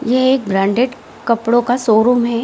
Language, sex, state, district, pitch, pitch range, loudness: Hindi, female, Bihar, Gaya, 240 Hz, 225-250 Hz, -15 LUFS